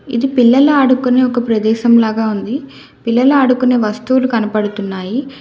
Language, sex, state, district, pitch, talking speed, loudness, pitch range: Telugu, female, Telangana, Hyderabad, 245 Hz, 120 wpm, -13 LUFS, 220-260 Hz